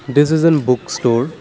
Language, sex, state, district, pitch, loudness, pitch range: English, male, Assam, Kamrup Metropolitan, 145 Hz, -15 LUFS, 125-160 Hz